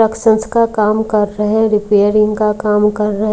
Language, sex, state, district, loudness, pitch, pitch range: Hindi, female, Maharashtra, Mumbai Suburban, -13 LUFS, 215 Hz, 210-220 Hz